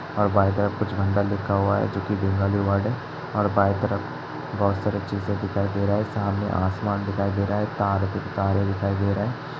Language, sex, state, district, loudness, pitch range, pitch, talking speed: Hindi, male, Uttar Pradesh, Hamirpur, -24 LUFS, 100-105 Hz, 100 Hz, 215 wpm